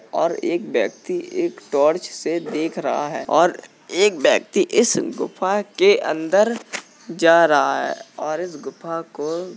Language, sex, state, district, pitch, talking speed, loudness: Hindi, male, Uttar Pradesh, Jalaun, 185 Hz, 150 wpm, -20 LUFS